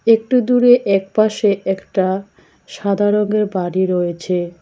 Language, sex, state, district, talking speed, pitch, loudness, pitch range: Bengali, female, West Bengal, Cooch Behar, 105 wpm, 200 Hz, -16 LUFS, 185-215 Hz